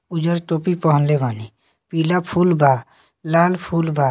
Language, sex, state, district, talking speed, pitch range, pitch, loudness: Bhojpuri, male, Bihar, Muzaffarpur, 145 wpm, 145-170 Hz, 165 Hz, -18 LUFS